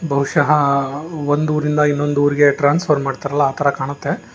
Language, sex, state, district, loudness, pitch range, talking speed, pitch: Kannada, male, Karnataka, Bangalore, -17 LUFS, 140-150 Hz, 125 wpm, 145 Hz